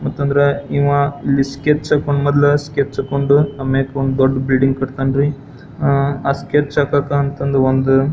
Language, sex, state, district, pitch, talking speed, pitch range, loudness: Kannada, male, Karnataka, Belgaum, 140 Hz, 110 wpm, 135-145 Hz, -16 LUFS